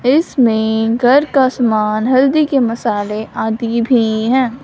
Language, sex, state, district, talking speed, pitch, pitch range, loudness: Hindi, female, Punjab, Fazilka, 130 wpm, 235 Hz, 220-260 Hz, -14 LUFS